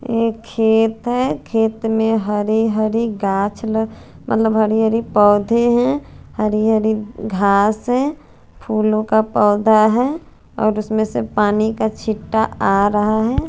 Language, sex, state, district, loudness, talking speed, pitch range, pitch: Hindi, female, Chandigarh, Chandigarh, -17 LUFS, 140 wpm, 215-225 Hz, 220 Hz